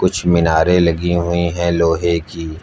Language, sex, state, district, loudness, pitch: Hindi, male, Uttar Pradesh, Lucknow, -16 LUFS, 85 Hz